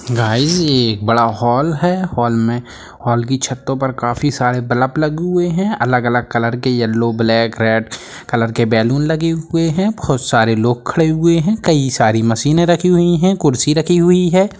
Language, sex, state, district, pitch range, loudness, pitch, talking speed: Hindi, male, Bihar, Sitamarhi, 120-165 Hz, -15 LUFS, 130 Hz, 190 wpm